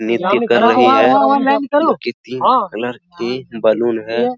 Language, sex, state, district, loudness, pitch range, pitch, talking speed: Hindi, male, Bihar, Araria, -14 LUFS, 115-175 Hz, 120 Hz, 150 wpm